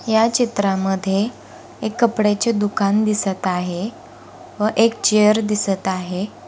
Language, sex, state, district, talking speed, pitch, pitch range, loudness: Marathi, female, Maharashtra, Pune, 110 wpm, 210 Hz, 195-220 Hz, -19 LUFS